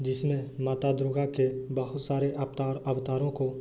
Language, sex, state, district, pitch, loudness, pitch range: Hindi, male, Bihar, Kishanganj, 135 Hz, -30 LUFS, 130-140 Hz